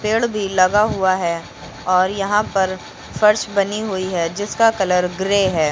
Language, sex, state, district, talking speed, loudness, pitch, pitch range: Hindi, female, Uttar Pradesh, Lucknow, 170 wpm, -18 LUFS, 195 Hz, 185-210 Hz